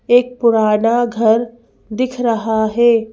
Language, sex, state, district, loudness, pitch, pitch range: Hindi, female, Madhya Pradesh, Bhopal, -15 LUFS, 230 Hz, 220-240 Hz